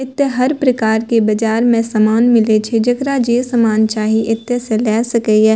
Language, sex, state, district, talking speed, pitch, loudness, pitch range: Maithili, female, Bihar, Purnia, 195 wpm, 230 Hz, -14 LUFS, 220-245 Hz